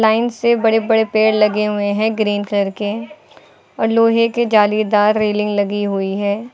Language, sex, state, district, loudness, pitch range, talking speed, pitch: Hindi, female, Uttar Pradesh, Lucknow, -16 LUFS, 205-225 Hz, 175 wpm, 215 Hz